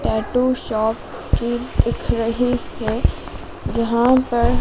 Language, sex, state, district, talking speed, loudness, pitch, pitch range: Hindi, female, Madhya Pradesh, Dhar, 105 wpm, -20 LUFS, 235 Hz, 225-250 Hz